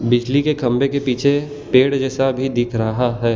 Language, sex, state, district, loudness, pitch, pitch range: Hindi, male, Gujarat, Valsad, -18 LUFS, 130 Hz, 120-140 Hz